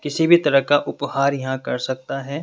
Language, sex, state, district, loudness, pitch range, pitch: Hindi, male, Rajasthan, Jaipur, -20 LUFS, 135-145 Hz, 140 Hz